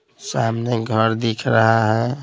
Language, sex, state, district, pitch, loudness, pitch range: Hindi, male, Bihar, Patna, 115 Hz, -19 LUFS, 110-115 Hz